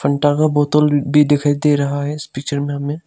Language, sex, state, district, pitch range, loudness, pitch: Hindi, male, Arunachal Pradesh, Longding, 145-150 Hz, -16 LUFS, 145 Hz